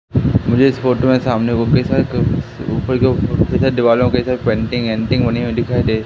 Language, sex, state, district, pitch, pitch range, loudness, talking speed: Hindi, male, Madhya Pradesh, Katni, 125 Hz, 115-130 Hz, -16 LUFS, 190 wpm